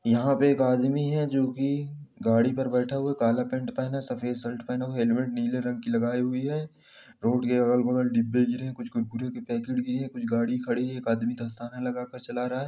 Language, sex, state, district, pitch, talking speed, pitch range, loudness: Hindi, male, Bihar, Samastipur, 125 Hz, 245 wpm, 120-130 Hz, -27 LUFS